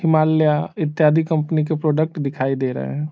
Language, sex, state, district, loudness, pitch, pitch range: Hindi, male, Bihar, Saran, -19 LUFS, 155 Hz, 140-155 Hz